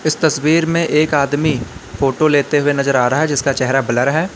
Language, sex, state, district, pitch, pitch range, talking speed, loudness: Hindi, male, Uttar Pradesh, Lalitpur, 145 Hz, 135-155 Hz, 220 wpm, -15 LUFS